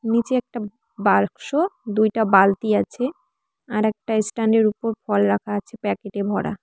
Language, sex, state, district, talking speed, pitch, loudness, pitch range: Bengali, female, West Bengal, Cooch Behar, 135 wpm, 220 Hz, -21 LUFS, 205-235 Hz